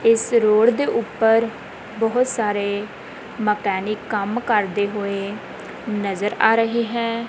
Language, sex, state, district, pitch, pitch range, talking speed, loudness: Punjabi, male, Punjab, Kapurthala, 215 Hz, 205-230 Hz, 115 wpm, -20 LUFS